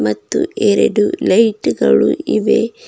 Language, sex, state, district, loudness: Kannada, female, Karnataka, Bidar, -14 LUFS